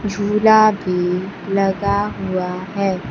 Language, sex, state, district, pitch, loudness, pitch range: Hindi, female, Bihar, Kaimur, 195 Hz, -18 LUFS, 185-205 Hz